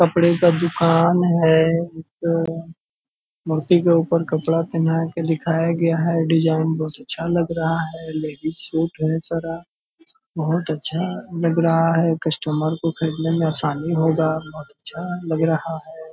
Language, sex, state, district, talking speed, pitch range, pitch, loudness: Hindi, male, Bihar, Purnia, 150 wpm, 160-170 Hz, 165 Hz, -20 LUFS